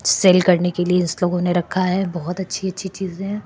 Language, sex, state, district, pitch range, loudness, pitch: Hindi, female, Maharashtra, Chandrapur, 175-190 Hz, -19 LUFS, 180 Hz